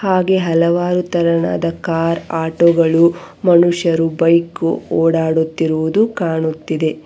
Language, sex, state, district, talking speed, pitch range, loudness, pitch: Kannada, female, Karnataka, Bangalore, 85 wpm, 160-175 Hz, -15 LUFS, 165 Hz